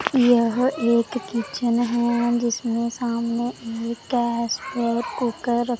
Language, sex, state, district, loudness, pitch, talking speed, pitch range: Hindi, female, Punjab, Pathankot, -23 LUFS, 235 Hz, 105 wpm, 235-240 Hz